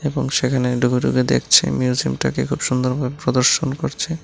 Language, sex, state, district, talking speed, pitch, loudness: Bengali, male, Tripura, West Tripura, 140 wpm, 125 Hz, -18 LUFS